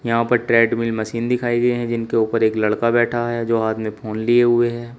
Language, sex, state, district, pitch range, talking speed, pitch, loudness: Hindi, male, Uttar Pradesh, Shamli, 115-120 Hz, 240 wpm, 115 Hz, -19 LUFS